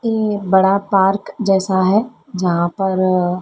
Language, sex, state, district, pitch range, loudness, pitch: Hindi, female, Madhya Pradesh, Dhar, 185-205 Hz, -16 LUFS, 190 Hz